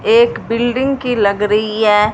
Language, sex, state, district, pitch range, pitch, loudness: Hindi, female, Punjab, Fazilka, 210-265 Hz, 225 Hz, -14 LUFS